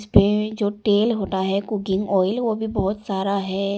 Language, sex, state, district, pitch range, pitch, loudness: Hindi, female, Arunachal Pradesh, Longding, 195-215 Hz, 200 Hz, -22 LUFS